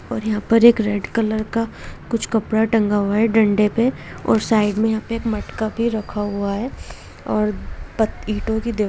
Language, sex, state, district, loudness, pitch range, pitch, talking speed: Hindi, female, Jharkhand, Sahebganj, -20 LUFS, 210-225 Hz, 220 Hz, 180 wpm